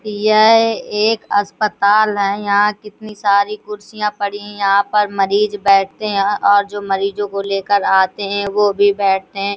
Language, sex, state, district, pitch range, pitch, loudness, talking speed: Hindi, female, Uttar Pradesh, Hamirpur, 200-210 Hz, 205 Hz, -15 LUFS, 165 wpm